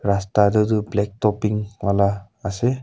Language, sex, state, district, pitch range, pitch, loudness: Nagamese, male, Nagaland, Kohima, 100-105 Hz, 105 Hz, -21 LUFS